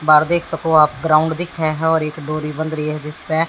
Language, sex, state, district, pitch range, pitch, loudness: Hindi, female, Haryana, Jhajjar, 155-160 Hz, 155 Hz, -17 LUFS